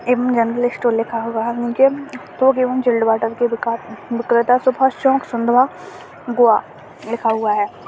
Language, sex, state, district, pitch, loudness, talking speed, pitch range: Hindi, male, Chhattisgarh, Bastar, 240 Hz, -17 LUFS, 160 wpm, 230-255 Hz